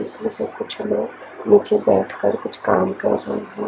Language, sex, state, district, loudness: Hindi, female, Chandigarh, Chandigarh, -20 LUFS